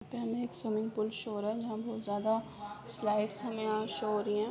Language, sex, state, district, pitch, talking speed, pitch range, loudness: Hindi, female, Bihar, Begusarai, 215 Hz, 250 wpm, 210-225 Hz, -35 LUFS